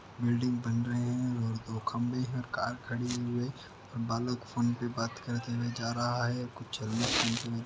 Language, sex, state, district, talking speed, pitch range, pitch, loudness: Hindi, male, Uttar Pradesh, Ghazipur, 165 wpm, 115-120 Hz, 120 Hz, -33 LUFS